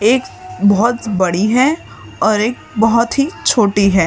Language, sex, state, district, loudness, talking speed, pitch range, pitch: Hindi, female, Maharashtra, Mumbai Suburban, -14 LUFS, 145 wpm, 200-240 Hz, 220 Hz